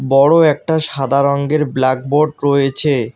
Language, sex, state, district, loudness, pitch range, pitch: Bengali, male, West Bengal, Alipurduar, -14 LUFS, 135-150 Hz, 140 Hz